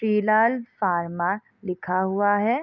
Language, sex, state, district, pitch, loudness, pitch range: Hindi, female, Bihar, Sitamarhi, 205 Hz, -23 LUFS, 180-220 Hz